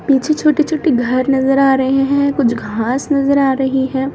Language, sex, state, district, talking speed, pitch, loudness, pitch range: Hindi, female, Bihar, Samastipur, 190 wpm, 270 Hz, -14 LUFS, 265-280 Hz